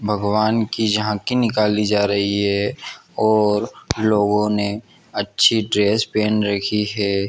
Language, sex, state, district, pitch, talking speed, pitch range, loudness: Hindi, male, Jharkhand, Jamtara, 105 Hz, 125 wpm, 100-110 Hz, -19 LUFS